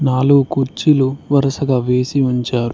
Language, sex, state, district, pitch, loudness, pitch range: Telugu, male, Telangana, Mahabubabad, 135 Hz, -16 LUFS, 125-140 Hz